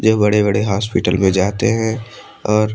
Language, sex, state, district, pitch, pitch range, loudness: Hindi, male, Odisha, Malkangiri, 105 Hz, 100-110 Hz, -16 LUFS